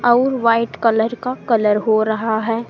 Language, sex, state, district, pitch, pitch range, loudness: Hindi, female, Uttar Pradesh, Saharanpur, 230 Hz, 220-240 Hz, -17 LUFS